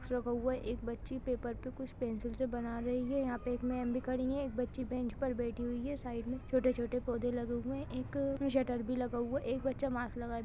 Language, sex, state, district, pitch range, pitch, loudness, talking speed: Hindi, female, Bihar, Saran, 240-255 Hz, 250 Hz, -37 LUFS, 265 wpm